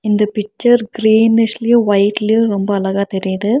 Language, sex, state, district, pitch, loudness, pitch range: Tamil, female, Tamil Nadu, Nilgiris, 215 Hz, -14 LUFS, 200-225 Hz